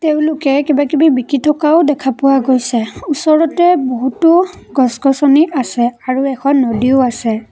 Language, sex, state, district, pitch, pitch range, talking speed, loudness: Assamese, female, Assam, Kamrup Metropolitan, 275 Hz, 255-300 Hz, 130 wpm, -13 LUFS